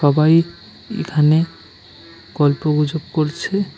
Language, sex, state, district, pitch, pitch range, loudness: Bengali, male, West Bengal, Alipurduar, 155 Hz, 150-165 Hz, -17 LUFS